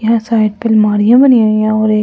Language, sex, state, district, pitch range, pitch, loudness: Hindi, female, Delhi, New Delhi, 215-230 Hz, 215 Hz, -10 LUFS